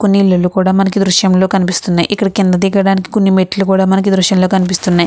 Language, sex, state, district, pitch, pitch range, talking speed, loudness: Telugu, female, Andhra Pradesh, Krishna, 190 Hz, 185-195 Hz, 200 wpm, -12 LUFS